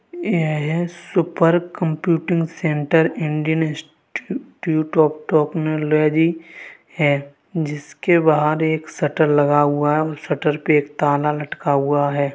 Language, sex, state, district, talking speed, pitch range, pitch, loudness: Hindi, male, Uttar Pradesh, Varanasi, 115 wpm, 150-165 Hz, 155 Hz, -19 LUFS